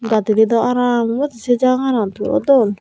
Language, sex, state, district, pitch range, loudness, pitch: Chakma, female, Tripura, Unakoti, 220-255 Hz, -16 LUFS, 240 Hz